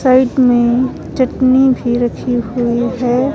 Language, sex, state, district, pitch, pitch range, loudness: Hindi, female, Himachal Pradesh, Shimla, 250 Hz, 240-260 Hz, -14 LUFS